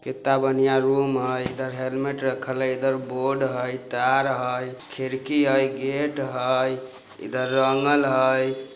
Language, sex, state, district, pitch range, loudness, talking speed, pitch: Bajjika, male, Bihar, Vaishali, 130-135 Hz, -23 LUFS, 130 wpm, 130 Hz